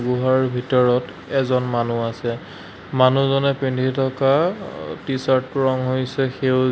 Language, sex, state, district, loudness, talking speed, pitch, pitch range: Assamese, male, Assam, Sonitpur, -20 LUFS, 115 wpm, 130 Hz, 125-135 Hz